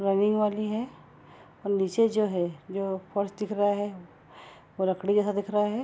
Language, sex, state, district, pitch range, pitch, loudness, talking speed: Hindi, female, Bihar, Gopalganj, 190-210 Hz, 200 Hz, -28 LUFS, 205 wpm